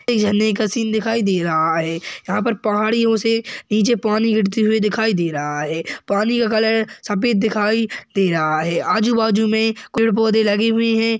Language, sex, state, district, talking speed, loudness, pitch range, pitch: Hindi, male, Chhattisgarh, Rajnandgaon, 180 wpm, -18 LUFS, 205-225 Hz, 220 Hz